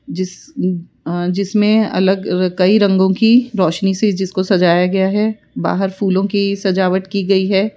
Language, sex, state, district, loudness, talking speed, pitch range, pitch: Hindi, female, Rajasthan, Jaipur, -15 LUFS, 160 wpm, 185-200 Hz, 190 Hz